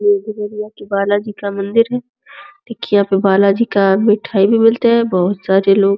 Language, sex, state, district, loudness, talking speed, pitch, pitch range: Hindi, female, Uttar Pradesh, Deoria, -14 LUFS, 180 wpm, 210 Hz, 195-230 Hz